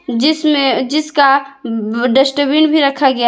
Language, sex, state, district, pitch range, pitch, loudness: Hindi, female, Jharkhand, Palamu, 255-300 Hz, 275 Hz, -13 LUFS